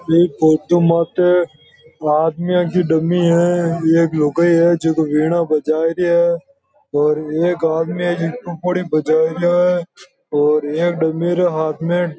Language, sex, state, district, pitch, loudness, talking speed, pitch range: Marwari, male, Rajasthan, Nagaur, 170 Hz, -16 LUFS, 155 wpm, 160-175 Hz